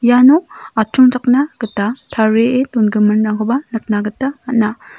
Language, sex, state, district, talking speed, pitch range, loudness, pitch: Garo, female, Meghalaya, South Garo Hills, 95 wpm, 215-255 Hz, -14 LUFS, 230 Hz